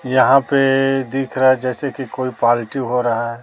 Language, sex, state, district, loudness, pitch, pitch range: Hindi, male, Chhattisgarh, Raipur, -17 LUFS, 130 Hz, 125-135 Hz